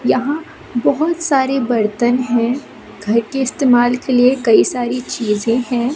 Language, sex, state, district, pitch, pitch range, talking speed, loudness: Hindi, female, Madhya Pradesh, Katni, 250 Hz, 235-270 Hz, 140 wpm, -16 LUFS